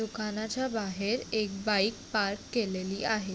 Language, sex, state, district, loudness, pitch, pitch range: Marathi, female, Maharashtra, Sindhudurg, -31 LUFS, 215 Hz, 200-220 Hz